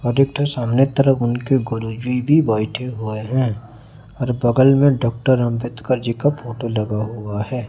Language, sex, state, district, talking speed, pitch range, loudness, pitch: Hindi, male, Chhattisgarh, Raipur, 155 wpm, 115-130 Hz, -19 LUFS, 120 Hz